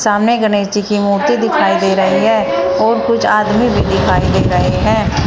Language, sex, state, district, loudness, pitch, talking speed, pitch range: Hindi, female, Uttar Pradesh, Shamli, -13 LUFS, 210 Hz, 195 wpm, 205-215 Hz